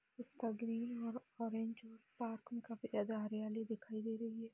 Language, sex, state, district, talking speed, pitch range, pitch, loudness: Hindi, female, Bihar, Sitamarhi, 145 wpm, 225-235 Hz, 230 Hz, -44 LUFS